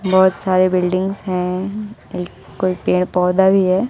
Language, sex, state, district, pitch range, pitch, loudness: Hindi, female, Bihar, West Champaran, 180-190 Hz, 185 Hz, -17 LUFS